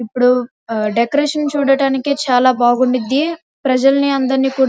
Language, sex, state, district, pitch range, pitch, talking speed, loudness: Telugu, female, Andhra Pradesh, Krishna, 250-280 Hz, 265 Hz, 115 wpm, -15 LUFS